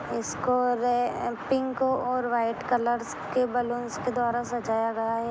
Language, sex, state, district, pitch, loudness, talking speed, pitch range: Hindi, female, Jharkhand, Jamtara, 245 Hz, -27 LUFS, 145 wpm, 235-250 Hz